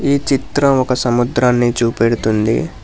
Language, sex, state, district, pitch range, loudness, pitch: Telugu, male, Telangana, Hyderabad, 115-135 Hz, -15 LUFS, 120 Hz